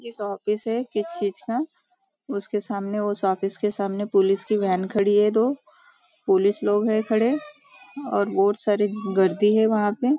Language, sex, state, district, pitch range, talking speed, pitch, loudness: Hindi, female, Maharashtra, Nagpur, 200-245 Hz, 170 wpm, 210 Hz, -23 LUFS